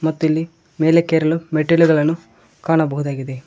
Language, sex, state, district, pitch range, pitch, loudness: Kannada, male, Karnataka, Koppal, 145-165 Hz, 160 Hz, -17 LUFS